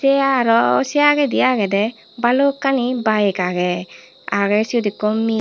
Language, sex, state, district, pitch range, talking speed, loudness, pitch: Chakma, female, Tripura, Unakoti, 205-270 Hz, 135 wpm, -17 LUFS, 225 Hz